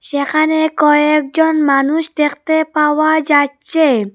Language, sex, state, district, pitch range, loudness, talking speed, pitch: Bengali, female, Assam, Hailakandi, 285-315 Hz, -13 LUFS, 85 wpm, 300 Hz